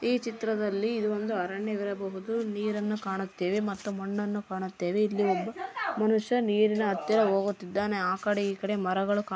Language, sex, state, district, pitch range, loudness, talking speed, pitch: Kannada, female, Karnataka, Raichur, 195-215 Hz, -29 LUFS, 135 wpm, 205 Hz